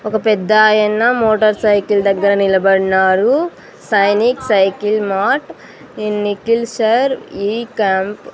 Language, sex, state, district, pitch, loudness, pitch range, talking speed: Telugu, female, Andhra Pradesh, Sri Satya Sai, 215 Hz, -14 LUFS, 200-230 Hz, 110 wpm